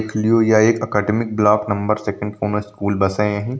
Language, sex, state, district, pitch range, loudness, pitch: Hindi, male, Uttar Pradesh, Varanasi, 105-110 Hz, -18 LUFS, 105 Hz